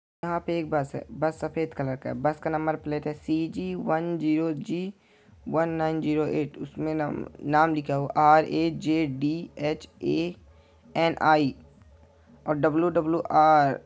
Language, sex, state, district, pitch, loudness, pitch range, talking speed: Hindi, male, Chhattisgarh, Bilaspur, 155 Hz, -26 LUFS, 150-160 Hz, 140 wpm